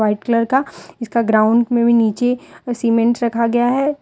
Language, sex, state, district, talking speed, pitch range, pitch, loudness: Hindi, female, Jharkhand, Deoghar, 180 wpm, 230-245 Hz, 235 Hz, -16 LUFS